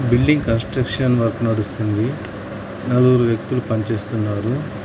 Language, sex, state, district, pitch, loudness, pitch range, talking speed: Telugu, male, Telangana, Hyderabad, 115 Hz, -19 LUFS, 110-125 Hz, 100 wpm